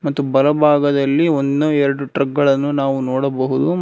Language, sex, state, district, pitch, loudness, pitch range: Kannada, male, Karnataka, Bangalore, 140 Hz, -16 LUFS, 135-145 Hz